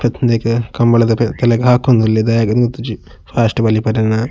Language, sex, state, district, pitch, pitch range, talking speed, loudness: Tulu, male, Karnataka, Dakshina Kannada, 115 Hz, 110-120 Hz, 155 wpm, -14 LUFS